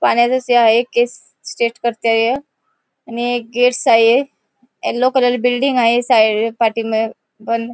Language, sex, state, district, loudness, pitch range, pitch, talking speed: Marathi, female, Goa, North and South Goa, -15 LUFS, 230-250 Hz, 240 Hz, 125 wpm